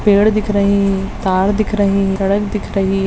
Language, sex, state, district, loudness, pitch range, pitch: Hindi, female, Bihar, Madhepura, -15 LUFS, 195-205 Hz, 200 Hz